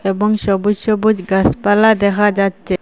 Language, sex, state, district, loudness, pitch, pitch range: Bengali, female, Assam, Hailakandi, -14 LUFS, 205 Hz, 195-210 Hz